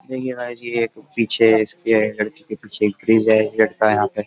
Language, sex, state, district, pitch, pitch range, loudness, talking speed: Hindi, male, Uttar Pradesh, Jyotiba Phule Nagar, 110 Hz, 105-115 Hz, -19 LUFS, 195 wpm